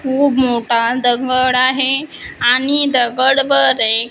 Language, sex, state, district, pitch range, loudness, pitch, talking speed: Marathi, female, Maharashtra, Gondia, 240-270 Hz, -13 LUFS, 255 Hz, 100 wpm